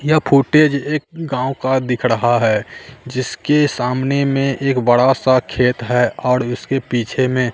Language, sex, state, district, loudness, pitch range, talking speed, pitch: Hindi, male, Bihar, Katihar, -16 LUFS, 125-135 Hz, 160 wpm, 130 Hz